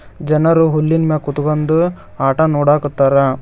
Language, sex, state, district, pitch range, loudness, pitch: Kannada, male, Karnataka, Koppal, 145-160 Hz, -15 LUFS, 150 Hz